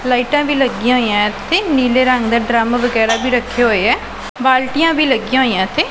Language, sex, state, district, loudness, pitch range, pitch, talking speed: Punjabi, female, Punjab, Pathankot, -14 LUFS, 235-265 Hz, 250 Hz, 185 wpm